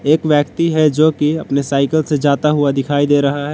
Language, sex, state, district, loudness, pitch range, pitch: Hindi, male, Jharkhand, Palamu, -15 LUFS, 140-155 Hz, 145 Hz